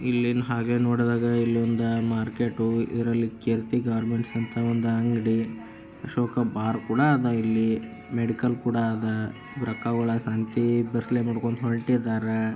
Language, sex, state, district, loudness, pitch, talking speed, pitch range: Kannada, male, Karnataka, Dharwad, -26 LUFS, 115 Hz, 105 wpm, 115-120 Hz